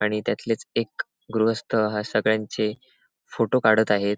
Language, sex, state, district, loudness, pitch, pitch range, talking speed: Marathi, male, Maharashtra, Sindhudurg, -24 LUFS, 110 Hz, 105-115 Hz, 115 wpm